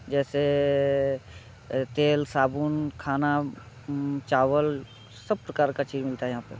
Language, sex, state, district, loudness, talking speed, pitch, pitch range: Hindi, male, Bihar, Muzaffarpur, -27 LUFS, 125 wpm, 140 Hz, 125-145 Hz